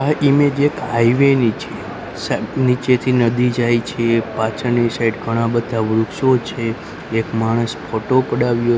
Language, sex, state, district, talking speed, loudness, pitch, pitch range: Gujarati, male, Gujarat, Gandhinagar, 145 wpm, -17 LUFS, 120 Hz, 115-130 Hz